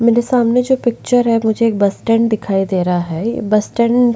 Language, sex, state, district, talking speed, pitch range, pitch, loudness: Hindi, female, Goa, North and South Goa, 245 wpm, 205-240 Hz, 230 Hz, -15 LUFS